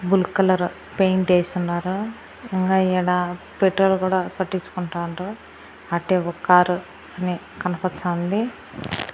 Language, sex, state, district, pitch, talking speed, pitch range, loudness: Telugu, female, Andhra Pradesh, Annamaya, 185 Hz, 100 wpm, 180-190 Hz, -22 LUFS